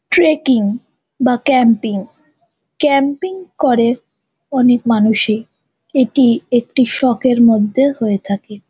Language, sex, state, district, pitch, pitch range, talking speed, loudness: Bengali, female, West Bengal, Kolkata, 245 Hz, 225-280 Hz, 95 wpm, -14 LUFS